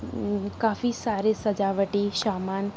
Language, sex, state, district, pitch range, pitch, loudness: Hindi, female, Jharkhand, Sahebganj, 200-220 Hz, 205 Hz, -26 LUFS